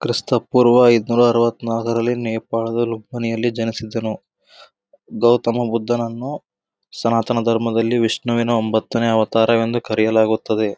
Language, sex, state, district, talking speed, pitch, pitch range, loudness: Kannada, male, Karnataka, Gulbarga, 100 wpm, 115 Hz, 115-120 Hz, -18 LUFS